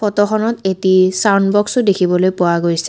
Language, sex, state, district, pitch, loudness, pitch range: Assamese, female, Assam, Kamrup Metropolitan, 195 Hz, -14 LUFS, 185-205 Hz